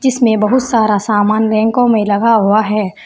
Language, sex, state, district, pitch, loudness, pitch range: Hindi, female, Uttar Pradesh, Saharanpur, 215 Hz, -12 LUFS, 210-230 Hz